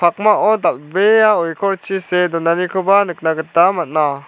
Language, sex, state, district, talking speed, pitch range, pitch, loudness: Garo, male, Meghalaya, South Garo Hills, 110 wpm, 165-200 Hz, 180 Hz, -15 LUFS